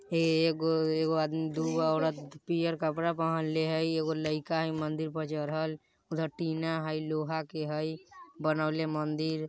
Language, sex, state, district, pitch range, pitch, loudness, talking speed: Bajjika, male, Bihar, Vaishali, 155-160 Hz, 160 Hz, -31 LUFS, 140 wpm